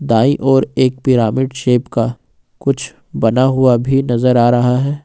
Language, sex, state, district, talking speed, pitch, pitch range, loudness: Hindi, male, Jharkhand, Ranchi, 155 wpm, 125 Hz, 120-135 Hz, -14 LUFS